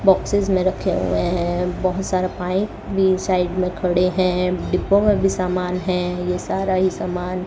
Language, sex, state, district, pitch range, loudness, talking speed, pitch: Hindi, male, Rajasthan, Bikaner, 180-190 Hz, -20 LUFS, 185 wpm, 185 Hz